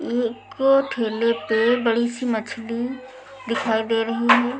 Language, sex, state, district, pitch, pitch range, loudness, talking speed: Hindi, female, Maharashtra, Mumbai Suburban, 235 Hz, 230-260 Hz, -22 LUFS, 145 wpm